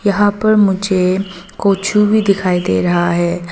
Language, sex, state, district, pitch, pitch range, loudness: Hindi, female, Arunachal Pradesh, Longding, 195 Hz, 175-205 Hz, -14 LUFS